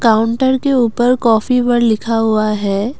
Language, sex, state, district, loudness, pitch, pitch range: Hindi, female, Assam, Kamrup Metropolitan, -14 LUFS, 230 Hz, 220-245 Hz